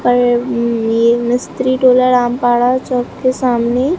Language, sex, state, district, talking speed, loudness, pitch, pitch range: Hindi, female, Bihar, Katihar, 120 wpm, -14 LUFS, 245 Hz, 240-255 Hz